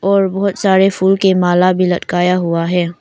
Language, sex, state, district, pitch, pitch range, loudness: Hindi, female, Arunachal Pradesh, Papum Pare, 185 Hz, 180-190 Hz, -13 LUFS